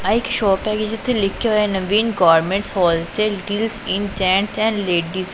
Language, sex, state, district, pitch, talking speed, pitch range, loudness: Punjabi, female, Punjab, Pathankot, 205 Hz, 180 wpm, 185-215 Hz, -18 LUFS